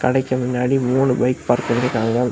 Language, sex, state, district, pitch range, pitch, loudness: Tamil, male, Tamil Nadu, Kanyakumari, 120-130 Hz, 125 Hz, -19 LUFS